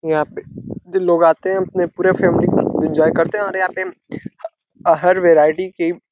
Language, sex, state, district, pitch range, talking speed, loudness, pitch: Hindi, male, Uttar Pradesh, Deoria, 165-190 Hz, 185 wpm, -16 LUFS, 180 Hz